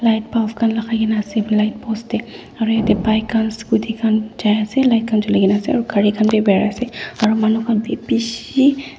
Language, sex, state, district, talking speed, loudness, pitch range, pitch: Nagamese, female, Nagaland, Dimapur, 220 wpm, -18 LUFS, 215-230 Hz, 220 Hz